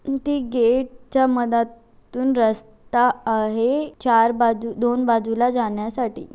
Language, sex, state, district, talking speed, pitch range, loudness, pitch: Marathi, female, Maharashtra, Chandrapur, 105 wpm, 230-250 Hz, -21 LUFS, 240 Hz